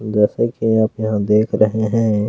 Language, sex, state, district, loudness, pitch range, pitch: Hindi, male, Chhattisgarh, Kabirdham, -17 LUFS, 105-110 Hz, 110 Hz